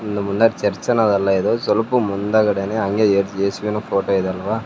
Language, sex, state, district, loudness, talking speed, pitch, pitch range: Kannada, male, Karnataka, Raichur, -18 LUFS, 180 wpm, 105 Hz, 100-110 Hz